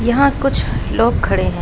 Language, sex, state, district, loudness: Hindi, female, Uttar Pradesh, Jalaun, -16 LUFS